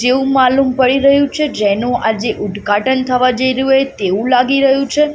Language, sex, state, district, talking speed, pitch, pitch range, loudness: Gujarati, female, Gujarat, Gandhinagar, 185 wpm, 260 Hz, 230-270 Hz, -13 LUFS